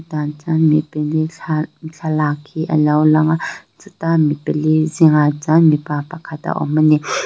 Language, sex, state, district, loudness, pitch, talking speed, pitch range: Mizo, female, Mizoram, Aizawl, -16 LUFS, 155 Hz, 155 wpm, 150-160 Hz